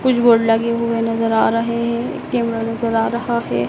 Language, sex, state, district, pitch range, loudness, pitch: Hindi, female, Madhya Pradesh, Dhar, 225-235 Hz, -18 LUFS, 230 Hz